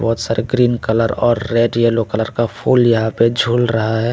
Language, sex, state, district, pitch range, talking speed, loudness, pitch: Hindi, male, Tripura, West Tripura, 115-120 Hz, 220 wpm, -16 LUFS, 115 Hz